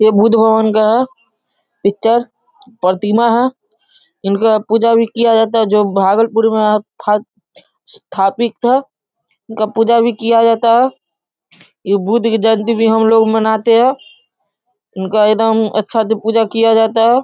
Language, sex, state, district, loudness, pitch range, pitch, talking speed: Hindi, male, Bihar, Darbhanga, -13 LUFS, 215-235 Hz, 225 Hz, 145 wpm